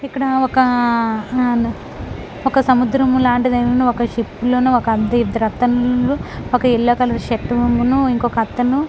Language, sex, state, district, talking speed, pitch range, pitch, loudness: Telugu, female, Andhra Pradesh, Krishna, 95 wpm, 240-255 Hz, 245 Hz, -16 LUFS